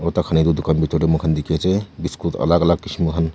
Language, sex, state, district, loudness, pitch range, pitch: Nagamese, male, Nagaland, Kohima, -19 LUFS, 80-85 Hz, 80 Hz